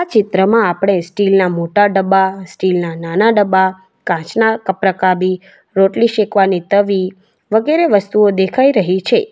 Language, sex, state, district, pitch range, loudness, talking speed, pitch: Gujarati, female, Gujarat, Valsad, 185-215 Hz, -14 LUFS, 135 wpm, 195 Hz